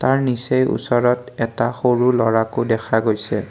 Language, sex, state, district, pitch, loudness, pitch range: Assamese, male, Assam, Kamrup Metropolitan, 120 Hz, -19 LUFS, 115-125 Hz